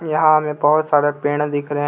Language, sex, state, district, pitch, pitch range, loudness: Hindi, male, Jharkhand, Ranchi, 150 Hz, 145-155 Hz, -17 LUFS